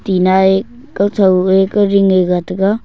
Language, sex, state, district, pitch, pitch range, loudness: Wancho, male, Arunachal Pradesh, Longding, 190 Hz, 185-200 Hz, -13 LUFS